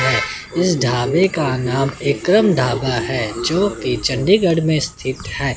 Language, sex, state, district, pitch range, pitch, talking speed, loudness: Hindi, male, Chandigarh, Chandigarh, 130-175 Hz, 135 Hz, 130 wpm, -18 LUFS